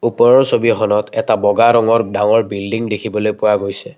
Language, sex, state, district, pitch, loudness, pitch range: Assamese, male, Assam, Kamrup Metropolitan, 110 Hz, -14 LUFS, 105-115 Hz